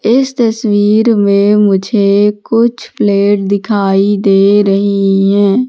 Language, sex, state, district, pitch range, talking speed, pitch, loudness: Hindi, female, Madhya Pradesh, Katni, 200-215 Hz, 105 wpm, 205 Hz, -10 LUFS